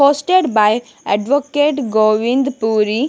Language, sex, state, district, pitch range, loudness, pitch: English, female, Punjab, Kapurthala, 215-285 Hz, -15 LUFS, 245 Hz